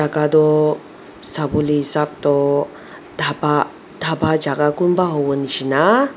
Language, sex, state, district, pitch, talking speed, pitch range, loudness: Nagamese, female, Nagaland, Dimapur, 150 Hz, 95 wpm, 145-155 Hz, -18 LUFS